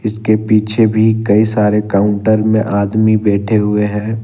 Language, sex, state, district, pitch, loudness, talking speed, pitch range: Hindi, male, Jharkhand, Ranchi, 110 Hz, -13 LUFS, 155 wpm, 105-110 Hz